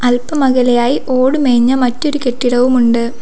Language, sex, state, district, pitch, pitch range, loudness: Malayalam, female, Kerala, Kollam, 250 Hz, 245-265 Hz, -13 LUFS